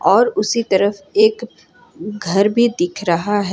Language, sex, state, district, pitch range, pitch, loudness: Hindi, female, Jharkhand, Ranchi, 195-235 Hz, 205 Hz, -16 LUFS